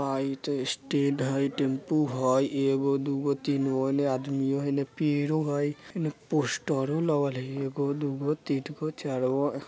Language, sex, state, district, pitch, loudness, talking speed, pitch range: Bajjika, male, Bihar, Vaishali, 140 Hz, -28 LUFS, 135 wpm, 135-145 Hz